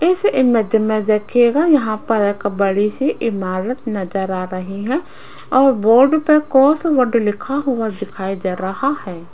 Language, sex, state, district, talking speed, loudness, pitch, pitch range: Hindi, female, Rajasthan, Jaipur, 160 wpm, -17 LUFS, 225 Hz, 200-270 Hz